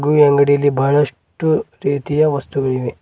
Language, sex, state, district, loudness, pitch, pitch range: Kannada, male, Karnataka, Bidar, -16 LUFS, 140 Hz, 135-150 Hz